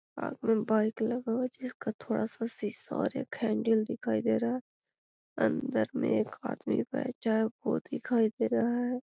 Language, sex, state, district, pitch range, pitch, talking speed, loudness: Magahi, female, Bihar, Gaya, 220-250 Hz, 230 Hz, 175 wpm, -32 LUFS